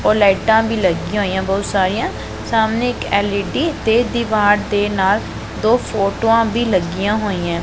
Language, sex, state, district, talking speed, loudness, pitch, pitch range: Punjabi, male, Punjab, Pathankot, 150 wpm, -17 LUFS, 205 Hz, 195-225 Hz